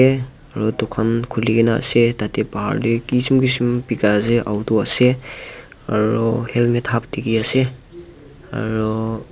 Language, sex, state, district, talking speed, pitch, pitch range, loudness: Nagamese, male, Nagaland, Dimapur, 130 wpm, 115 Hz, 110-125 Hz, -18 LUFS